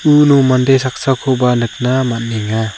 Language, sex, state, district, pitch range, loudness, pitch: Garo, male, Meghalaya, South Garo Hills, 115-135 Hz, -13 LUFS, 130 Hz